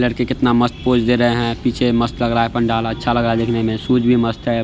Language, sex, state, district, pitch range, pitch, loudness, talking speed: Hindi, male, Bihar, Araria, 115-125 Hz, 120 Hz, -17 LUFS, 270 wpm